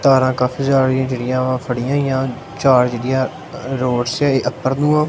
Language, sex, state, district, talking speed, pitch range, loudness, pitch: Punjabi, male, Punjab, Kapurthala, 155 wpm, 125-135 Hz, -17 LUFS, 130 Hz